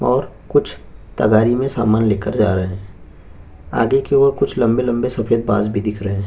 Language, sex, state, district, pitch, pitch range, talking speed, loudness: Hindi, male, Chhattisgarh, Bastar, 110 Hz, 100-120 Hz, 190 wpm, -17 LUFS